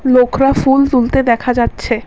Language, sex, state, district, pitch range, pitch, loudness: Bengali, female, Assam, Kamrup Metropolitan, 240-270 Hz, 250 Hz, -13 LUFS